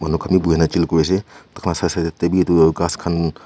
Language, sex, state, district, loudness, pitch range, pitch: Nagamese, male, Nagaland, Kohima, -18 LUFS, 80-90 Hz, 85 Hz